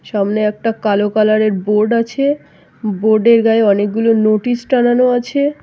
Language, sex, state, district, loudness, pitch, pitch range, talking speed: Bengali, female, West Bengal, North 24 Parganas, -14 LUFS, 220 Hz, 210-240 Hz, 160 wpm